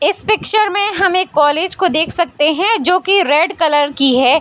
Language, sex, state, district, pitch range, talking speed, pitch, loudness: Hindi, female, Bihar, Sitamarhi, 295-390 Hz, 205 wpm, 350 Hz, -13 LUFS